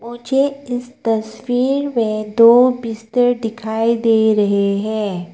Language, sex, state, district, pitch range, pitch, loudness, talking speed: Hindi, female, Arunachal Pradesh, Papum Pare, 220-245 Hz, 230 Hz, -17 LUFS, 110 wpm